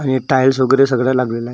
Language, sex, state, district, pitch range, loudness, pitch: Marathi, male, Maharashtra, Gondia, 125-135 Hz, -14 LUFS, 130 Hz